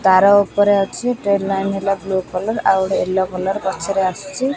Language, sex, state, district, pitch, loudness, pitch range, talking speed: Odia, female, Odisha, Khordha, 195 Hz, -17 LUFS, 190-205 Hz, 185 wpm